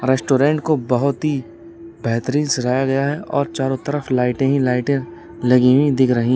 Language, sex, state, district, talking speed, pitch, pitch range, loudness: Hindi, male, Uttar Pradesh, Lalitpur, 180 wpm, 135 Hz, 125-145 Hz, -18 LUFS